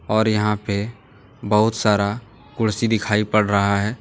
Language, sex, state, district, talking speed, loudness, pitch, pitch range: Hindi, male, Jharkhand, Deoghar, 150 wpm, -20 LUFS, 105 Hz, 105-115 Hz